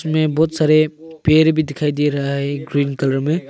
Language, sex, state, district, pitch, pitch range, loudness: Hindi, male, Arunachal Pradesh, Longding, 155 Hz, 140-155 Hz, -17 LUFS